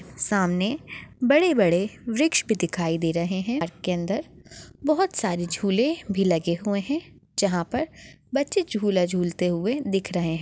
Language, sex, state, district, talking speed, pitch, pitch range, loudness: Hindi, female, Chhattisgarh, Bastar, 160 wpm, 200 Hz, 175-250 Hz, -24 LUFS